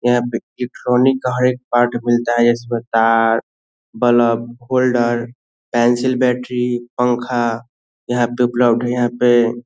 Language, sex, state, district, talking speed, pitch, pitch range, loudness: Hindi, male, Bihar, Saran, 135 wpm, 120 Hz, 120-125 Hz, -17 LUFS